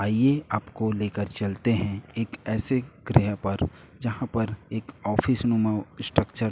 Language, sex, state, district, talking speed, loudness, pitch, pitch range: Hindi, male, Chhattisgarh, Raipur, 145 wpm, -27 LUFS, 110 Hz, 105-120 Hz